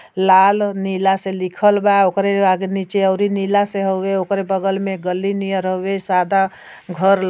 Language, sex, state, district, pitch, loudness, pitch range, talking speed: Bhojpuri, female, Uttar Pradesh, Ghazipur, 195 Hz, -17 LUFS, 190-195 Hz, 180 wpm